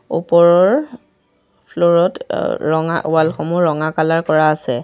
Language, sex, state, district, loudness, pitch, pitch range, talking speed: Assamese, female, Assam, Sonitpur, -15 LUFS, 165 Hz, 155-175 Hz, 135 wpm